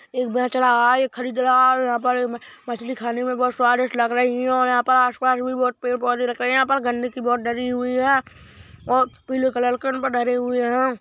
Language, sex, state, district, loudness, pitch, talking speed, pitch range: Hindi, male, Chhattisgarh, Bilaspur, -20 LUFS, 250 Hz, 290 wpm, 245-255 Hz